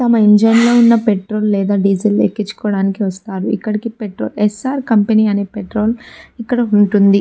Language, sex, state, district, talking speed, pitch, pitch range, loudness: Telugu, female, Andhra Pradesh, Chittoor, 150 wpm, 210 Hz, 200-225 Hz, -14 LUFS